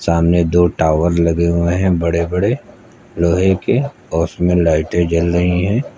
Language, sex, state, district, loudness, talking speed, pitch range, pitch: Hindi, male, Uttar Pradesh, Lucknow, -15 LUFS, 150 wpm, 85-90 Hz, 85 Hz